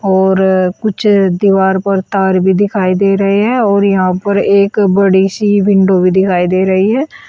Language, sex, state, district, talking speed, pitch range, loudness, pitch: Hindi, female, Uttar Pradesh, Shamli, 180 wpm, 190-200 Hz, -11 LUFS, 195 Hz